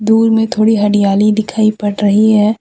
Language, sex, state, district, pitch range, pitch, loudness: Hindi, female, Jharkhand, Deoghar, 205-220 Hz, 215 Hz, -12 LUFS